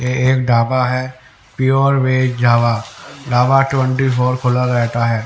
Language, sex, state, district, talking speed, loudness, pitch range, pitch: Hindi, male, Haryana, Rohtak, 150 wpm, -15 LUFS, 120-130 Hz, 125 Hz